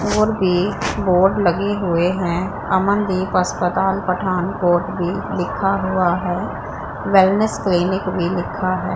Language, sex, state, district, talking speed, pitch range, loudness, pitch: Hindi, female, Punjab, Pathankot, 120 wpm, 180-195 Hz, -19 LUFS, 185 Hz